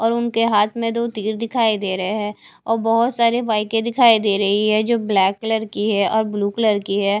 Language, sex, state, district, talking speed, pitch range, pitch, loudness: Hindi, female, Haryana, Charkhi Dadri, 235 wpm, 205-230 Hz, 220 Hz, -19 LUFS